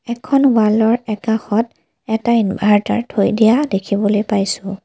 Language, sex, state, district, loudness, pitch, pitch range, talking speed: Assamese, female, Assam, Kamrup Metropolitan, -16 LUFS, 220 Hz, 205-235 Hz, 110 wpm